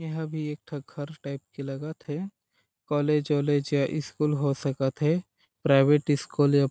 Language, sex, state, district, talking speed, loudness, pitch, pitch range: Chhattisgarhi, male, Chhattisgarh, Sarguja, 150 wpm, -27 LUFS, 145 Hz, 140-155 Hz